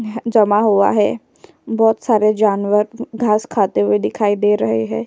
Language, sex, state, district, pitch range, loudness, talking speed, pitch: Hindi, female, Uttar Pradesh, Jyotiba Phule Nagar, 200-225 Hz, -16 LUFS, 165 wpm, 210 Hz